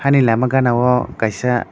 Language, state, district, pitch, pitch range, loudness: Kokborok, Tripura, Dhalai, 125 Hz, 120-130 Hz, -16 LUFS